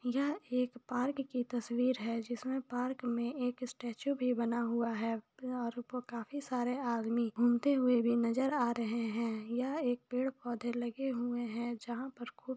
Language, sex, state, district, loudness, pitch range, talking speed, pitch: Hindi, female, Jharkhand, Jamtara, -36 LUFS, 235-255 Hz, 170 wpm, 245 Hz